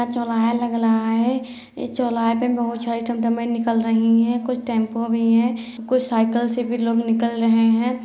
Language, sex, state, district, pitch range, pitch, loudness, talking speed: Hindi, female, Bihar, Bhagalpur, 230-240 Hz, 235 Hz, -20 LUFS, 185 wpm